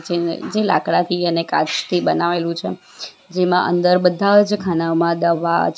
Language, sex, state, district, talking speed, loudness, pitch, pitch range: Gujarati, female, Gujarat, Valsad, 135 wpm, -18 LUFS, 175 Hz, 170-180 Hz